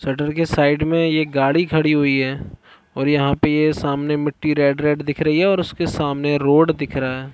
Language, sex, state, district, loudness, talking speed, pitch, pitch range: Hindi, male, Chhattisgarh, Balrampur, -18 LUFS, 220 wpm, 150 Hz, 140-155 Hz